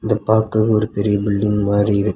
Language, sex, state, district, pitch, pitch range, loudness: Tamil, male, Tamil Nadu, Kanyakumari, 105 Hz, 100-110 Hz, -17 LUFS